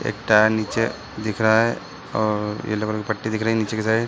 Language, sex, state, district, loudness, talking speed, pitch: Hindi, male, Bihar, Sitamarhi, -22 LUFS, 265 wpm, 110 Hz